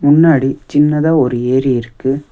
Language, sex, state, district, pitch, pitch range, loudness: Tamil, male, Tamil Nadu, Nilgiris, 135 Hz, 130-150 Hz, -13 LUFS